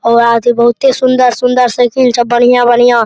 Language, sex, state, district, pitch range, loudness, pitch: Maithili, male, Bihar, Araria, 240-250 Hz, -9 LUFS, 245 Hz